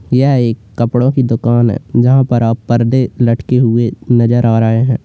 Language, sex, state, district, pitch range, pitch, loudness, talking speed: Hindi, male, Uttar Pradesh, Lalitpur, 115-125 Hz, 120 Hz, -12 LUFS, 190 wpm